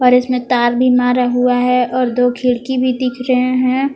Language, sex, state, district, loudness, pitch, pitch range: Hindi, female, Jharkhand, Palamu, -15 LUFS, 250 Hz, 245-255 Hz